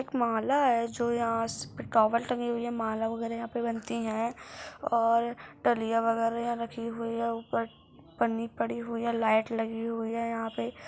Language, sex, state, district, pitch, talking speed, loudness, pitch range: Hindi, female, Bihar, Madhepura, 230 Hz, 195 wpm, -30 LUFS, 230-235 Hz